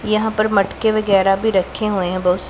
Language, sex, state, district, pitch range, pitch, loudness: Hindi, female, Punjab, Pathankot, 190-215 Hz, 200 Hz, -17 LUFS